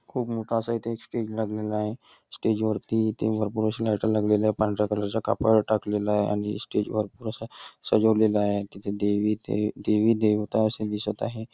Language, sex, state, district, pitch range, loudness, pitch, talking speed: Hindi, male, Maharashtra, Chandrapur, 105-110 Hz, -26 LUFS, 110 Hz, 190 wpm